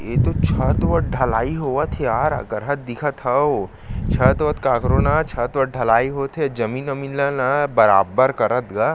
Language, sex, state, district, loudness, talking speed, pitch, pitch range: Chhattisgarhi, male, Chhattisgarh, Sarguja, -19 LUFS, 190 wpm, 135 Hz, 120-140 Hz